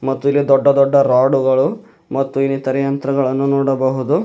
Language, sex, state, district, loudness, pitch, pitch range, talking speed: Kannada, male, Karnataka, Bidar, -15 LUFS, 135 Hz, 135-140 Hz, 140 wpm